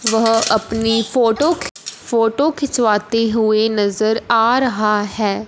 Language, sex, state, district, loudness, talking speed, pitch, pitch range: Hindi, female, Punjab, Fazilka, -16 LUFS, 120 wpm, 225 Hz, 215-230 Hz